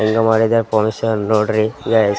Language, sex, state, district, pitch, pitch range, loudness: Kannada, male, Karnataka, Raichur, 110 Hz, 110-115 Hz, -16 LUFS